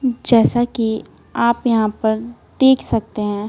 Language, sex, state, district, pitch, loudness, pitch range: Hindi, female, Bihar, Patna, 230 Hz, -17 LUFS, 215-240 Hz